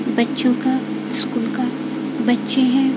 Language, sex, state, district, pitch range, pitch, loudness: Hindi, female, Odisha, Khordha, 255-275 Hz, 265 Hz, -18 LUFS